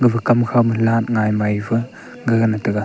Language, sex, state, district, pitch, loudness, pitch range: Wancho, male, Arunachal Pradesh, Longding, 115 Hz, -18 LUFS, 105-120 Hz